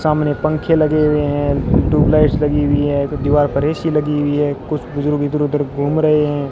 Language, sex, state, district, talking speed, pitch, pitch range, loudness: Hindi, male, Rajasthan, Bikaner, 205 wpm, 145 Hz, 145-150 Hz, -16 LUFS